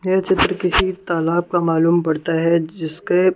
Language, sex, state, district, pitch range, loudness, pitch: Hindi, female, Punjab, Kapurthala, 165-185 Hz, -18 LUFS, 175 Hz